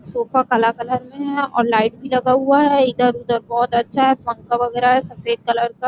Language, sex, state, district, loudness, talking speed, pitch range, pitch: Hindi, female, Chhattisgarh, Rajnandgaon, -18 LUFS, 225 wpm, 235-265 Hz, 245 Hz